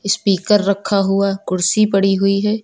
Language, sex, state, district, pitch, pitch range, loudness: Hindi, female, Uttar Pradesh, Lucknow, 200 Hz, 195-205 Hz, -16 LUFS